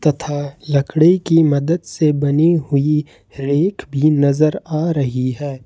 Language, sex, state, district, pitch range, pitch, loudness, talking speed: Hindi, male, Jharkhand, Ranchi, 140-160 Hz, 150 Hz, -17 LUFS, 140 wpm